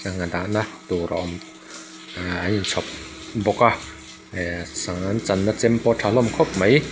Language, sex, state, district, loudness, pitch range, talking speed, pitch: Mizo, male, Mizoram, Aizawl, -22 LUFS, 90-115 Hz, 190 wpm, 95 Hz